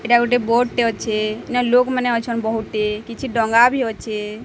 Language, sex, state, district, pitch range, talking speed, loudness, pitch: Odia, female, Odisha, Sambalpur, 220-245 Hz, 190 wpm, -19 LUFS, 230 Hz